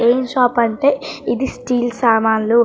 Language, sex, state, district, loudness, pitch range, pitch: Telugu, female, Andhra Pradesh, Srikakulam, -17 LUFS, 230-250 Hz, 240 Hz